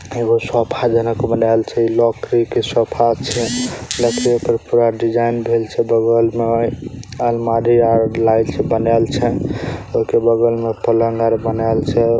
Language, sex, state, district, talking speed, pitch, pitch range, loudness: Maithili, male, Bihar, Saharsa, 150 wpm, 115 Hz, 115-120 Hz, -16 LUFS